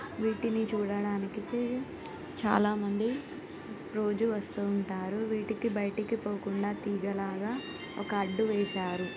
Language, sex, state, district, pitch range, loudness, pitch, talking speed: Telugu, female, Telangana, Nalgonda, 200-225 Hz, -33 LUFS, 210 Hz, 90 wpm